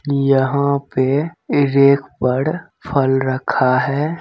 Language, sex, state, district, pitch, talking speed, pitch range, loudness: Hindi, male, Bihar, Begusarai, 140 Hz, 100 wpm, 130-145 Hz, -17 LUFS